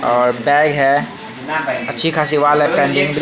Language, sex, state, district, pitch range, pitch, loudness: Hindi, male, Bihar, Patna, 130-150 Hz, 145 Hz, -15 LUFS